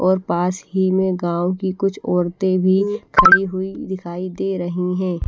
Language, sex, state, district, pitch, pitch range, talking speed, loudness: Hindi, female, Odisha, Malkangiri, 185 Hz, 180-190 Hz, 170 wpm, -19 LUFS